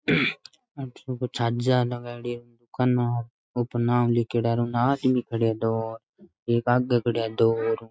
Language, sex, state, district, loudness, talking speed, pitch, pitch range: Rajasthani, male, Rajasthan, Nagaur, -25 LUFS, 160 wpm, 120 Hz, 115-125 Hz